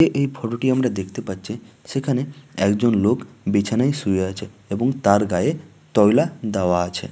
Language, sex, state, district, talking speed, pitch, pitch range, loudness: Bengali, male, West Bengal, Dakshin Dinajpur, 160 wpm, 115 Hz, 100-135 Hz, -21 LUFS